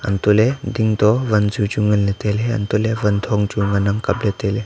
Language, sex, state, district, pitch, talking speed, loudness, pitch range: Wancho, male, Arunachal Pradesh, Longding, 105 Hz, 255 wpm, -18 LUFS, 100-110 Hz